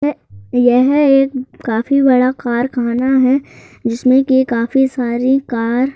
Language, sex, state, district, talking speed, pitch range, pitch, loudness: Hindi, male, Madhya Pradesh, Bhopal, 130 wpm, 240-270 Hz, 255 Hz, -14 LUFS